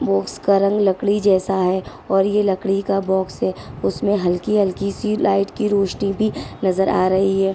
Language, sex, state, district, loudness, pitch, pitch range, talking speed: Hindi, female, Uttar Pradesh, Ghazipur, -19 LUFS, 195 Hz, 185-200 Hz, 185 wpm